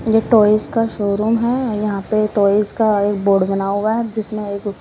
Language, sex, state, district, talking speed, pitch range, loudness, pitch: Hindi, female, Odisha, Malkangiri, 210 wpm, 200-220 Hz, -17 LUFS, 210 Hz